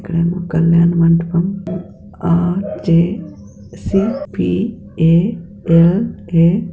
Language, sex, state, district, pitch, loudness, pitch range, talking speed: Telugu, female, Andhra Pradesh, Anantapur, 170 Hz, -15 LUFS, 165-185 Hz, 60 wpm